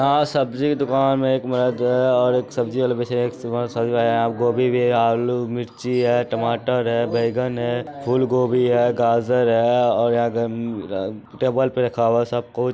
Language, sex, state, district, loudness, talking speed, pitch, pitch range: Maithili, male, Bihar, Supaul, -20 LUFS, 175 wpm, 120 Hz, 115-125 Hz